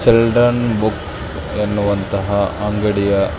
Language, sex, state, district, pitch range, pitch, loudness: Kannada, male, Karnataka, Belgaum, 100-110 Hz, 105 Hz, -17 LUFS